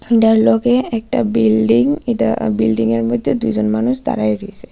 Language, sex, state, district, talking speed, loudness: Bengali, female, Tripura, West Tripura, 140 wpm, -15 LUFS